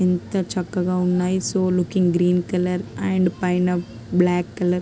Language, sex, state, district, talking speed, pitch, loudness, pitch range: Telugu, female, Andhra Pradesh, Krishna, 125 wpm, 180 Hz, -21 LUFS, 180-185 Hz